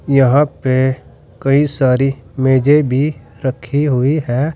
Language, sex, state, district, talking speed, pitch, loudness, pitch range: Hindi, male, Uttar Pradesh, Saharanpur, 120 wpm, 135 Hz, -15 LUFS, 130-145 Hz